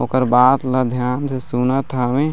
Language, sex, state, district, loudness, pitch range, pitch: Chhattisgarhi, male, Chhattisgarh, Raigarh, -17 LUFS, 125-135 Hz, 130 Hz